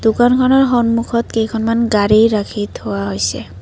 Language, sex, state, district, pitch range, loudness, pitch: Assamese, female, Assam, Kamrup Metropolitan, 205-235 Hz, -15 LUFS, 225 Hz